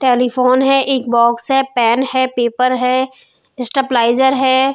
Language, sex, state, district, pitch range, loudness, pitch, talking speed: Hindi, female, Uttar Pradesh, Hamirpur, 245-265 Hz, -14 LUFS, 255 Hz, 140 wpm